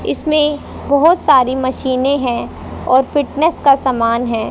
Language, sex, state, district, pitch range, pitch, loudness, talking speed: Hindi, female, Haryana, Jhajjar, 255-290 Hz, 270 Hz, -14 LUFS, 135 wpm